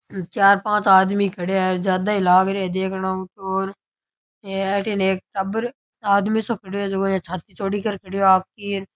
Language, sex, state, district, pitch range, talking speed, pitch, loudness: Rajasthani, male, Rajasthan, Churu, 190-200 Hz, 180 wpm, 195 Hz, -21 LUFS